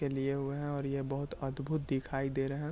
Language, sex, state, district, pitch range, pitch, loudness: Hindi, male, Bihar, Begusarai, 135-145 Hz, 140 Hz, -35 LUFS